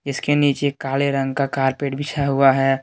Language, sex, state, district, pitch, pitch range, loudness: Hindi, male, Jharkhand, Deoghar, 140 Hz, 135-140 Hz, -19 LUFS